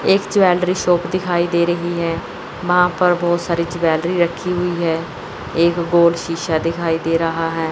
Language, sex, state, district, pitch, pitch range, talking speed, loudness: Hindi, male, Chandigarh, Chandigarh, 170 Hz, 165-180 Hz, 170 wpm, -18 LUFS